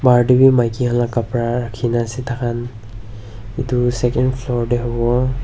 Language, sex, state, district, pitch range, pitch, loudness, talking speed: Nagamese, male, Nagaland, Dimapur, 115-125 Hz, 120 Hz, -18 LUFS, 175 wpm